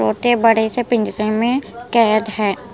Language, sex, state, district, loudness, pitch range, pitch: Hindi, female, Punjab, Pathankot, -17 LUFS, 215-240 Hz, 225 Hz